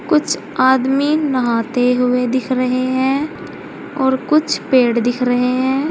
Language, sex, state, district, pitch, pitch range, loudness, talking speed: Hindi, female, Uttar Pradesh, Saharanpur, 260 Hz, 250-290 Hz, -16 LUFS, 130 wpm